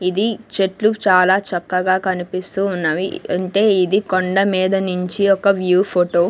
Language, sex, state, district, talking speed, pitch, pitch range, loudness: Telugu, female, Andhra Pradesh, Sri Satya Sai, 140 wpm, 185 Hz, 180-200 Hz, -17 LUFS